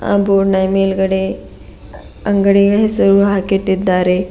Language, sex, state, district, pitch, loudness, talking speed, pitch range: Kannada, female, Karnataka, Bidar, 195 Hz, -13 LUFS, 85 wpm, 190-200 Hz